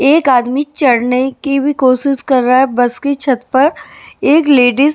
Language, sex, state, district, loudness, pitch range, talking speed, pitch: Hindi, female, Maharashtra, Gondia, -12 LUFS, 255-285 Hz, 195 wpm, 270 Hz